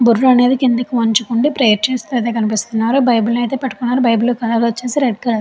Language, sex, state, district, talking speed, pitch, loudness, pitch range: Telugu, female, Andhra Pradesh, Chittoor, 175 wpm, 240 Hz, -15 LUFS, 230-255 Hz